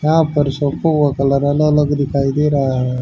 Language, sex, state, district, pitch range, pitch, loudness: Hindi, male, Haryana, Jhajjar, 140-150 Hz, 145 Hz, -16 LUFS